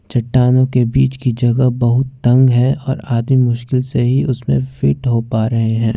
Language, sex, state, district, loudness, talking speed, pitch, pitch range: Hindi, male, Jharkhand, Ranchi, -15 LUFS, 190 wpm, 125 Hz, 115-130 Hz